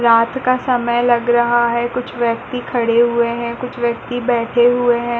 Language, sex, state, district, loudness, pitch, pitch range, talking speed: Hindi, female, Chhattisgarh, Balrampur, -16 LUFS, 240 Hz, 235-245 Hz, 185 wpm